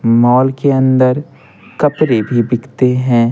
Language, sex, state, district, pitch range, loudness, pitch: Hindi, male, Bihar, Patna, 120-130 Hz, -13 LUFS, 125 Hz